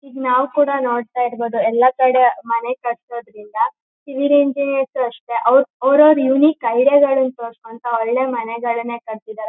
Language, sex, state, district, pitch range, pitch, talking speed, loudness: Kannada, female, Karnataka, Shimoga, 235-275 Hz, 250 Hz, 105 wpm, -17 LUFS